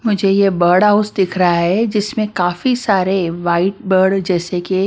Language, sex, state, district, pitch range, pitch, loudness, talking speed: Hindi, female, Maharashtra, Washim, 180-205 Hz, 190 Hz, -15 LUFS, 170 wpm